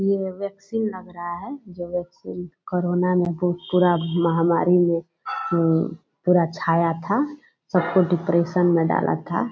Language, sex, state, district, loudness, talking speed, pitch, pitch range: Hindi, female, Bihar, Purnia, -22 LUFS, 140 wpm, 180 Hz, 170-190 Hz